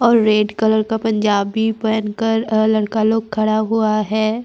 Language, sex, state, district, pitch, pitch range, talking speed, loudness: Hindi, female, Uttar Pradesh, Budaun, 220 Hz, 215-225 Hz, 175 wpm, -17 LUFS